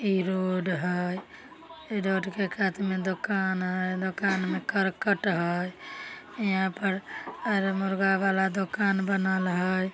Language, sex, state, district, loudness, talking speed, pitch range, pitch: Maithili, female, Bihar, Samastipur, -28 LUFS, 135 wpm, 185-195 Hz, 190 Hz